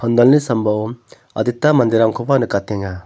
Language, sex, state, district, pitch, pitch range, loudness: Garo, male, Meghalaya, North Garo Hills, 115 Hz, 105-120 Hz, -16 LUFS